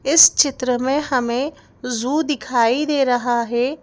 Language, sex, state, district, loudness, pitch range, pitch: Hindi, female, Madhya Pradesh, Bhopal, -18 LUFS, 245-290 Hz, 255 Hz